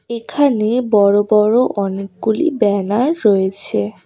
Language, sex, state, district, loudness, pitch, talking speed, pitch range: Bengali, female, West Bengal, Cooch Behar, -15 LUFS, 210 Hz, 90 wpm, 200-240 Hz